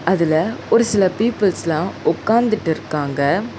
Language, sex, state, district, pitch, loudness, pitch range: Tamil, female, Tamil Nadu, Chennai, 185 Hz, -18 LUFS, 160-220 Hz